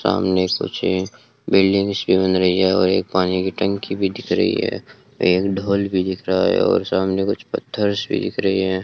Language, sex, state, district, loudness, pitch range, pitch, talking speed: Hindi, male, Rajasthan, Bikaner, -19 LUFS, 95-100 Hz, 95 Hz, 205 wpm